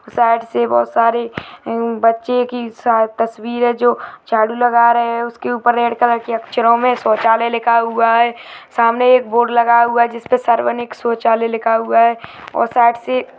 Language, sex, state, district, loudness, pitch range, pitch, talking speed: Hindi, female, Uttarakhand, Tehri Garhwal, -15 LUFS, 230-240 Hz, 235 Hz, 190 wpm